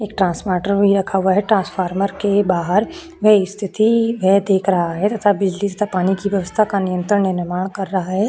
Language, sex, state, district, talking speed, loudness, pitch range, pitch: Hindi, female, Uttar Pradesh, Jalaun, 200 wpm, -17 LUFS, 185-205 Hz, 195 Hz